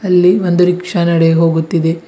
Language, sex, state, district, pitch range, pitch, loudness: Kannada, male, Karnataka, Bidar, 165-180 Hz, 175 Hz, -12 LUFS